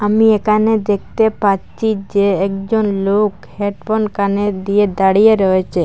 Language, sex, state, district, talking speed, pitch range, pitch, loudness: Bengali, female, Assam, Hailakandi, 125 wpm, 195-215 Hz, 205 Hz, -15 LUFS